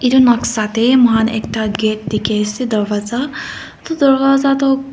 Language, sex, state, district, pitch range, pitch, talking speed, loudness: Nagamese, female, Nagaland, Kohima, 215-270 Hz, 235 Hz, 145 wpm, -15 LUFS